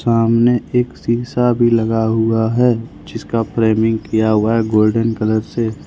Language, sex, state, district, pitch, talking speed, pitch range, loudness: Hindi, male, Jharkhand, Ranchi, 115 Hz, 155 wpm, 110-120 Hz, -16 LUFS